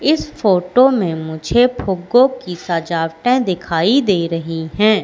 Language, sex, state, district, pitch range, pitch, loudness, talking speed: Hindi, female, Madhya Pradesh, Katni, 165-245 Hz, 190 Hz, -16 LUFS, 130 wpm